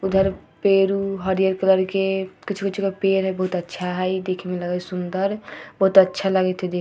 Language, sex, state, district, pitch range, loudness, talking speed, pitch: Hindi, female, Bihar, Vaishali, 185-195 Hz, -21 LUFS, 220 wpm, 190 Hz